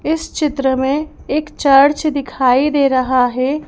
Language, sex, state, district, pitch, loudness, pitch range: Hindi, female, Madhya Pradesh, Bhopal, 275 Hz, -15 LUFS, 260-300 Hz